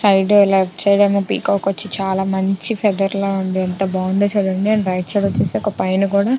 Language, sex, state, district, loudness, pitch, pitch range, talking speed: Telugu, female, Andhra Pradesh, Chittoor, -17 LUFS, 195 Hz, 190-200 Hz, 195 wpm